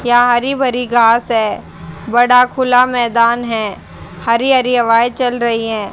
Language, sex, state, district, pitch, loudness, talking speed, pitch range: Hindi, female, Haryana, Charkhi Dadri, 240 Hz, -13 LUFS, 150 wpm, 230-250 Hz